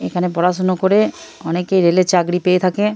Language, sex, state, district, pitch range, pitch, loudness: Bengali, female, West Bengal, Purulia, 180-190 Hz, 185 Hz, -16 LUFS